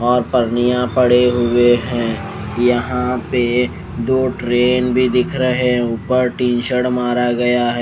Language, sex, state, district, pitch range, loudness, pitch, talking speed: Hindi, male, Maharashtra, Mumbai Suburban, 120-125 Hz, -16 LUFS, 125 Hz, 145 wpm